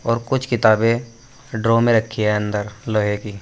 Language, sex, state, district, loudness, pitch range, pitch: Hindi, male, Uttar Pradesh, Saharanpur, -19 LUFS, 105-120 Hz, 115 Hz